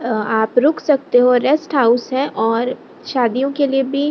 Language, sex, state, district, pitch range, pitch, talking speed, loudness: Hindi, female, Bihar, Lakhisarai, 235-280 Hz, 260 Hz, 205 wpm, -16 LUFS